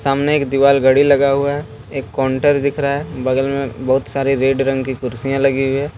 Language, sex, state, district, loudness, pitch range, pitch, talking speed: Hindi, male, Jharkhand, Deoghar, -16 LUFS, 130-140 Hz, 135 Hz, 230 wpm